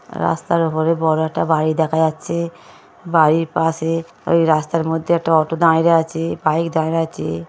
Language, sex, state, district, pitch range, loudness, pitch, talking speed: Bengali, male, West Bengal, Paschim Medinipur, 160-165 Hz, -18 LUFS, 160 Hz, 170 wpm